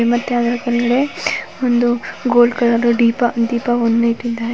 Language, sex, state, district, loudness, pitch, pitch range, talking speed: Kannada, female, Karnataka, Mysore, -16 LUFS, 240 Hz, 235-240 Hz, 80 wpm